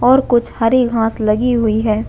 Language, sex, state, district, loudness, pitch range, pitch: Hindi, female, Chhattisgarh, Bastar, -15 LUFS, 220-245 Hz, 230 Hz